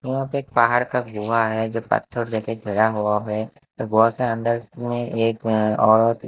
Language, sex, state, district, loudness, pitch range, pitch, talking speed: Hindi, male, Himachal Pradesh, Shimla, -21 LUFS, 110-120 Hz, 115 Hz, 190 wpm